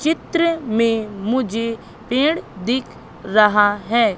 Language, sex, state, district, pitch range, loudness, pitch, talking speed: Hindi, female, Madhya Pradesh, Katni, 210-260 Hz, -19 LUFS, 230 Hz, 100 wpm